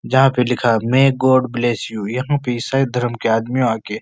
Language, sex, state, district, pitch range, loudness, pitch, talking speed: Hindi, male, Uttar Pradesh, Etah, 115-130 Hz, -17 LUFS, 125 Hz, 255 wpm